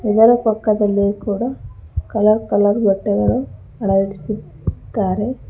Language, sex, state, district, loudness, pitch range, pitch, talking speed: Kannada, female, Karnataka, Bangalore, -18 LUFS, 200-220 Hz, 210 Hz, 75 wpm